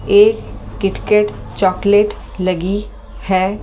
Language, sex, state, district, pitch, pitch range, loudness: Hindi, female, Delhi, New Delhi, 195 Hz, 185-210 Hz, -16 LUFS